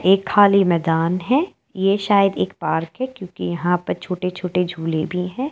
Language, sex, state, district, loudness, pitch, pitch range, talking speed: Hindi, female, Uttar Pradesh, Etah, -20 LUFS, 180 Hz, 175-200 Hz, 185 wpm